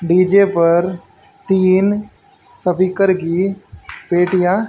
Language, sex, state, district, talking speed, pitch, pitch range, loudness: Hindi, female, Haryana, Charkhi Dadri, 75 wpm, 185 Hz, 180-195 Hz, -15 LUFS